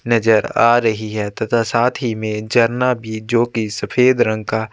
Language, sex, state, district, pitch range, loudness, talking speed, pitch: Hindi, male, Chhattisgarh, Sukma, 110-120 Hz, -17 LUFS, 190 wpm, 115 Hz